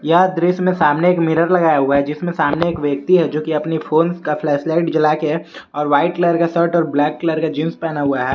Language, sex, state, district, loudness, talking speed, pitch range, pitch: Hindi, male, Jharkhand, Garhwa, -17 LUFS, 245 wpm, 150-170 Hz, 160 Hz